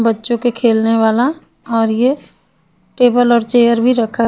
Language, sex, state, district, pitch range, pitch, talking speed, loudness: Hindi, female, Bihar, Patna, 230-245 Hz, 235 Hz, 170 wpm, -14 LUFS